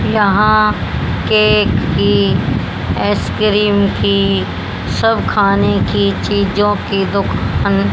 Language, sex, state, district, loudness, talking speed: Hindi, male, Haryana, Jhajjar, -14 LUFS, 85 wpm